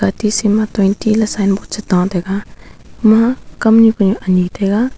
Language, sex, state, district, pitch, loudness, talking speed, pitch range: Wancho, female, Arunachal Pradesh, Longding, 210 Hz, -14 LUFS, 155 wpm, 195-220 Hz